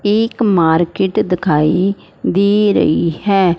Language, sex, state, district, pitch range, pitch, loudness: Hindi, male, Punjab, Fazilka, 170-205 Hz, 190 Hz, -14 LUFS